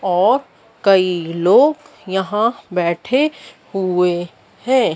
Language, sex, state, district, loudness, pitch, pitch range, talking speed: Hindi, female, Madhya Pradesh, Dhar, -17 LUFS, 190 Hz, 180-250 Hz, 85 wpm